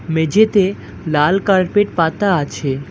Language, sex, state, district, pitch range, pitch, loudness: Bengali, male, West Bengal, Alipurduar, 160-200 Hz, 180 Hz, -16 LUFS